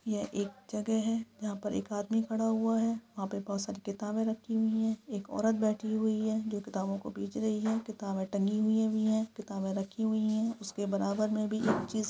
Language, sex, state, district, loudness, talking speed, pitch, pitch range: Hindi, female, Bihar, Supaul, -33 LUFS, 230 wpm, 215 Hz, 205-220 Hz